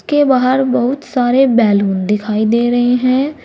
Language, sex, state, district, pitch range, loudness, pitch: Hindi, female, Uttar Pradesh, Saharanpur, 225-265 Hz, -13 LUFS, 245 Hz